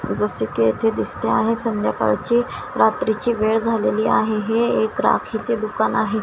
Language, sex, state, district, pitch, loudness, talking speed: Marathi, female, Maharashtra, Washim, 215 Hz, -20 LUFS, 145 wpm